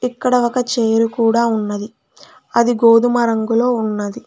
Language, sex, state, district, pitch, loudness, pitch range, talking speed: Telugu, female, Telangana, Hyderabad, 230 Hz, -16 LUFS, 225-245 Hz, 125 wpm